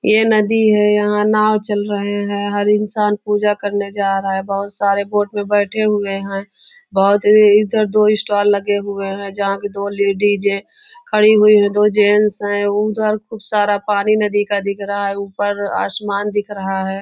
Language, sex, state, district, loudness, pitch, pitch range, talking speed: Hindi, female, Maharashtra, Nagpur, -16 LUFS, 205 Hz, 200-210 Hz, 185 wpm